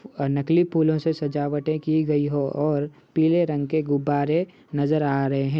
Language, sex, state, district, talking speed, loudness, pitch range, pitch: Hindi, male, Uttar Pradesh, Ghazipur, 205 wpm, -23 LUFS, 145-155 Hz, 150 Hz